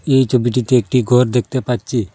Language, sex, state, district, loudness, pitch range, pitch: Bengali, male, Assam, Hailakandi, -16 LUFS, 120-130 Hz, 125 Hz